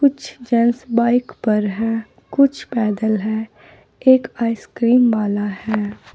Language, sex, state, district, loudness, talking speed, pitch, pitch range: Hindi, female, Uttar Pradesh, Saharanpur, -18 LUFS, 115 wpm, 230 Hz, 215-245 Hz